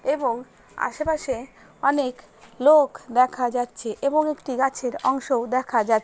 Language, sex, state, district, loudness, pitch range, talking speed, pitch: Bengali, female, West Bengal, Purulia, -23 LUFS, 240-280 Hz, 120 wpm, 255 Hz